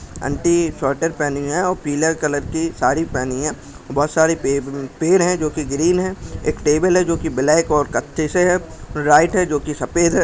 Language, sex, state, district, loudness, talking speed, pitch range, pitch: Hindi, male, Chhattisgarh, Korba, -18 LUFS, 195 wpm, 140-170 Hz, 155 Hz